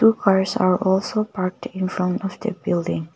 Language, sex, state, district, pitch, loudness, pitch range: English, female, Nagaland, Kohima, 190 Hz, -22 LUFS, 185-215 Hz